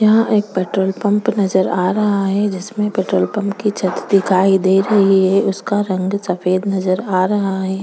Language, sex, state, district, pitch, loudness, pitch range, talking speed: Hindi, female, Chhattisgarh, Korba, 195 Hz, -16 LUFS, 190-205 Hz, 185 wpm